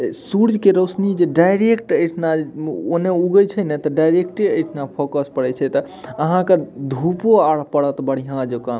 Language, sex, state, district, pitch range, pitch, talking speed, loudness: Maithili, male, Bihar, Madhepura, 140-190 Hz, 165 Hz, 165 wpm, -18 LUFS